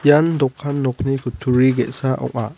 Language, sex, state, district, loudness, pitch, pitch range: Garo, male, Meghalaya, West Garo Hills, -19 LUFS, 130 Hz, 125-145 Hz